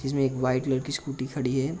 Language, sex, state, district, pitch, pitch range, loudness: Hindi, male, Uttar Pradesh, Jalaun, 135 Hz, 130-140 Hz, -28 LUFS